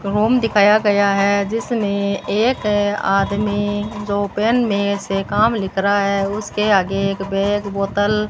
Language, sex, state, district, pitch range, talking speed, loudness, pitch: Hindi, female, Rajasthan, Bikaner, 200-210 Hz, 160 wpm, -18 LUFS, 205 Hz